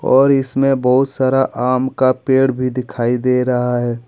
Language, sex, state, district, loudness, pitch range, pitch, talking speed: Hindi, male, Jharkhand, Deoghar, -16 LUFS, 125-135 Hz, 130 Hz, 175 wpm